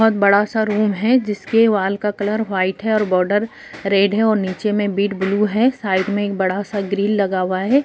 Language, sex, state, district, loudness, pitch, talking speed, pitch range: Hindi, female, Bihar, Sitamarhi, -18 LUFS, 205 Hz, 205 wpm, 195-220 Hz